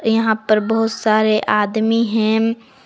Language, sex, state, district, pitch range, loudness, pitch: Hindi, female, Jharkhand, Palamu, 215-225 Hz, -17 LUFS, 220 Hz